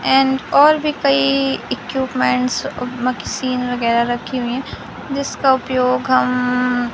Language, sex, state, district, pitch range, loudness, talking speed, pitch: Hindi, female, Madhya Pradesh, Katni, 250-270 Hz, -17 LUFS, 105 wpm, 255 Hz